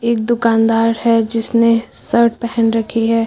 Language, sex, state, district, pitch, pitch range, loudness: Hindi, female, Uttar Pradesh, Lucknow, 230 Hz, 225-235 Hz, -15 LUFS